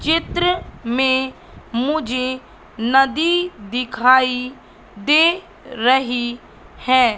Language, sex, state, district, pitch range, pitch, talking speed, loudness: Hindi, female, Madhya Pradesh, Katni, 245-310 Hz, 255 Hz, 65 wpm, -18 LUFS